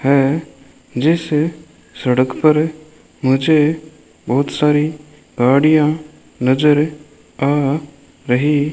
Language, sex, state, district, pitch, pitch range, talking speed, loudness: Hindi, male, Rajasthan, Bikaner, 150 Hz, 140-155 Hz, 80 wpm, -16 LUFS